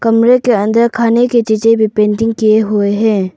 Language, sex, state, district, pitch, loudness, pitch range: Hindi, female, Arunachal Pradesh, Papum Pare, 225 Hz, -11 LUFS, 215-230 Hz